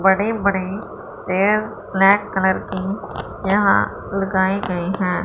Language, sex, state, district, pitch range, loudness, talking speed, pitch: Hindi, female, Punjab, Fazilka, 190-205 Hz, -19 LUFS, 115 wpm, 195 Hz